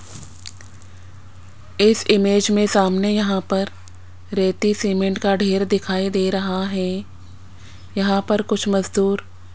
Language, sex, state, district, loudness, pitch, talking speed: Hindi, female, Rajasthan, Jaipur, -19 LUFS, 195 Hz, 120 wpm